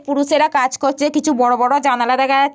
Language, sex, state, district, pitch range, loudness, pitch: Bengali, female, West Bengal, Jalpaiguri, 255-290 Hz, -15 LUFS, 280 Hz